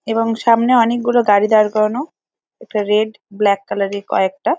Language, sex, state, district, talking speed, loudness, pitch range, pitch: Bengali, female, West Bengal, North 24 Parganas, 170 wpm, -16 LUFS, 205-240 Hz, 215 Hz